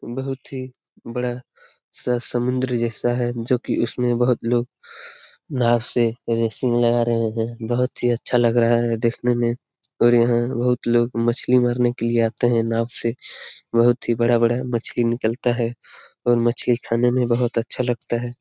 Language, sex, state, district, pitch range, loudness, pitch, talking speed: Hindi, male, Bihar, Lakhisarai, 115-125 Hz, -21 LUFS, 120 Hz, 175 wpm